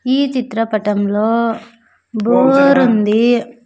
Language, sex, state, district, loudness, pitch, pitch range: Telugu, female, Andhra Pradesh, Sri Satya Sai, -14 LUFS, 230 Hz, 220-255 Hz